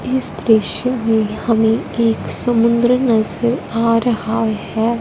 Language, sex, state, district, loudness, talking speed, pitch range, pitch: Hindi, female, Punjab, Fazilka, -16 LUFS, 120 wpm, 225-240 Hz, 230 Hz